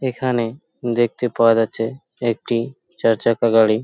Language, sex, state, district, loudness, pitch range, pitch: Bengali, male, West Bengal, Paschim Medinipur, -20 LUFS, 115-125 Hz, 115 Hz